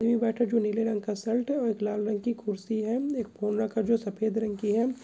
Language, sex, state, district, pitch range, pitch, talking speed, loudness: Hindi, male, Bihar, Bhagalpur, 210-235 Hz, 220 Hz, 260 wpm, -29 LUFS